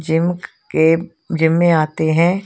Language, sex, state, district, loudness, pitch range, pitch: Hindi, female, Punjab, Kapurthala, -16 LUFS, 160-175 Hz, 165 Hz